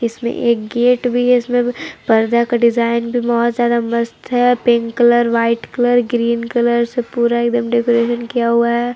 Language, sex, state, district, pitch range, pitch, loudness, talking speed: Hindi, female, Jharkhand, Palamu, 235-245 Hz, 235 Hz, -15 LUFS, 180 wpm